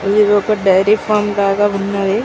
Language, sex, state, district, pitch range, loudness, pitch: Telugu, female, Telangana, Karimnagar, 195-210 Hz, -14 LUFS, 205 Hz